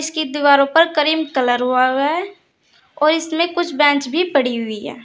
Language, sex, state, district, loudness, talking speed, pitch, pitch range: Hindi, female, Uttar Pradesh, Saharanpur, -16 LUFS, 190 wpm, 300 Hz, 265-325 Hz